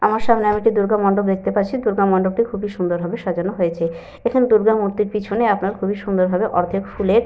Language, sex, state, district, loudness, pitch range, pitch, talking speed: Bengali, female, Jharkhand, Sahebganj, -19 LUFS, 190-220 Hz, 205 Hz, 215 wpm